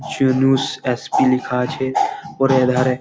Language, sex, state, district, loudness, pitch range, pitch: Bengali, male, West Bengal, Malda, -18 LUFS, 130-135 Hz, 130 Hz